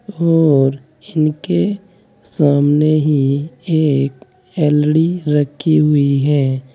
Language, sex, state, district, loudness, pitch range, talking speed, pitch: Hindi, male, Uttar Pradesh, Saharanpur, -15 LUFS, 140-160 Hz, 80 wpm, 150 Hz